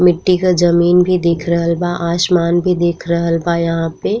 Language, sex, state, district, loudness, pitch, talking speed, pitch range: Bhojpuri, female, Uttar Pradesh, Ghazipur, -14 LUFS, 170 Hz, 200 wpm, 170-180 Hz